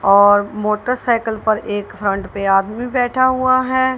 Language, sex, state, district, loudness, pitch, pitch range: Hindi, female, Punjab, Kapurthala, -17 LUFS, 220 Hz, 205-255 Hz